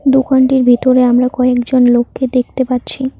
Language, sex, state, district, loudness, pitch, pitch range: Bengali, female, West Bengal, Cooch Behar, -12 LUFS, 255 Hz, 245-260 Hz